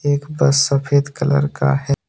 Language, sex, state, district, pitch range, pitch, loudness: Hindi, male, Jharkhand, Deoghar, 140-145 Hz, 140 Hz, -17 LUFS